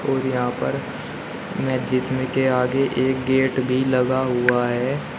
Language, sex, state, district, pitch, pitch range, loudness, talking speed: Hindi, male, Uttar Pradesh, Shamli, 130 Hz, 125-130 Hz, -22 LUFS, 150 wpm